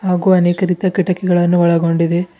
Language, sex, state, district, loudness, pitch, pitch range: Kannada, female, Karnataka, Bidar, -14 LUFS, 180 Hz, 170-185 Hz